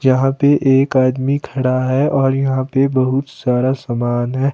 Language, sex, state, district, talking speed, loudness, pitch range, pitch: Hindi, male, Himachal Pradesh, Shimla, 170 wpm, -16 LUFS, 130-135 Hz, 130 Hz